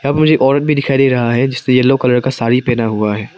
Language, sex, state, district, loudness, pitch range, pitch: Hindi, male, Arunachal Pradesh, Papum Pare, -13 LUFS, 120-135 Hz, 130 Hz